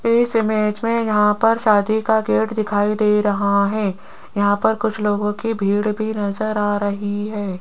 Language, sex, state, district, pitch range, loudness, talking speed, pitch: Hindi, female, Rajasthan, Jaipur, 205-220 Hz, -19 LUFS, 180 wpm, 210 Hz